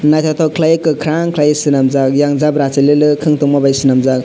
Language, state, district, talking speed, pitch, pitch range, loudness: Kokborok, Tripura, West Tripura, 170 wpm, 150 Hz, 140-155 Hz, -12 LUFS